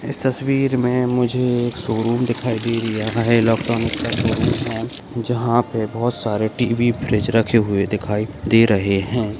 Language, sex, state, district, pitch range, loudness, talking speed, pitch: Hindi, male, Rajasthan, Nagaur, 110-120 Hz, -19 LUFS, 180 wpm, 115 Hz